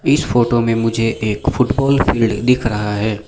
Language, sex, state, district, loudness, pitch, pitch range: Hindi, male, Sikkim, Gangtok, -16 LUFS, 115 Hz, 105-125 Hz